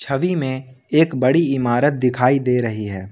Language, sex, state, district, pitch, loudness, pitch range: Hindi, male, Jharkhand, Ranchi, 130 Hz, -18 LUFS, 125-140 Hz